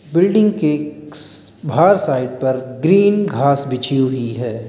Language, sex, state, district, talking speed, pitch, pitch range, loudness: Hindi, male, Uttar Pradesh, Lalitpur, 130 wpm, 145 Hz, 130-170 Hz, -16 LUFS